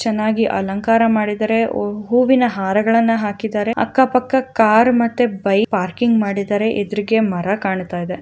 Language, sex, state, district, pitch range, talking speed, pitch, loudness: Kannada, female, Karnataka, Raichur, 205-230 Hz, 115 wpm, 215 Hz, -17 LUFS